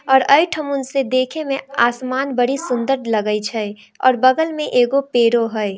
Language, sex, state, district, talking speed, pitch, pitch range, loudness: Hindi, female, Bihar, Darbhanga, 165 wpm, 255 Hz, 235-275 Hz, -17 LUFS